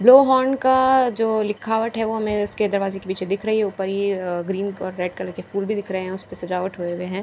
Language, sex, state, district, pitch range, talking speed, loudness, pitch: Hindi, female, Bihar, Katihar, 190-220 Hz, 265 wpm, -21 LUFS, 200 Hz